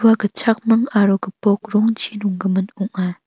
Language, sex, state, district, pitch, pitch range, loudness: Garo, female, Meghalaya, North Garo Hills, 210 Hz, 195-225 Hz, -18 LUFS